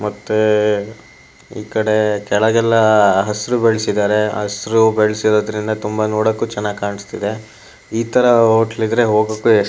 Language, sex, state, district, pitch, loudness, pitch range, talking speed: Kannada, male, Karnataka, Shimoga, 110 Hz, -16 LUFS, 105-110 Hz, 95 wpm